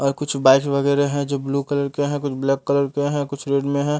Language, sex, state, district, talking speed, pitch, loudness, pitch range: Hindi, male, Haryana, Charkhi Dadri, 285 wpm, 140 Hz, -20 LUFS, 140-145 Hz